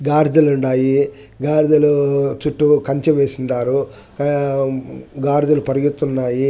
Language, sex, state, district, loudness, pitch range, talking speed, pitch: Telugu, male, Andhra Pradesh, Anantapur, -17 LUFS, 135-145 Hz, 65 wpm, 140 Hz